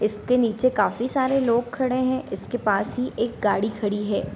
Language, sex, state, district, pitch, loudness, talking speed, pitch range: Hindi, female, Bihar, Darbhanga, 240 Hz, -23 LUFS, 195 wpm, 210-255 Hz